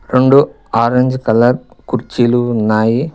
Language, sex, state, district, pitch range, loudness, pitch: Telugu, male, Telangana, Mahabubabad, 115-130 Hz, -13 LUFS, 120 Hz